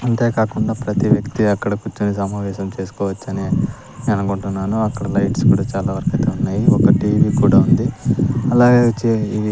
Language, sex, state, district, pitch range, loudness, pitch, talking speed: Telugu, male, Andhra Pradesh, Sri Satya Sai, 100-115 Hz, -17 LUFS, 105 Hz, 130 wpm